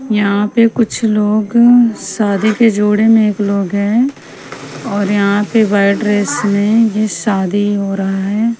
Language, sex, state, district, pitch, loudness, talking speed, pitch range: Hindi, female, Punjab, Pathankot, 210 Hz, -13 LUFS, 155 wpm, 200-225 Hz